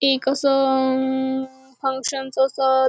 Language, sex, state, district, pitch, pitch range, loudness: Marathi, female, Maharashtra, Chandrapur, 265 Hz, 265-270 Hz, -21 LUFS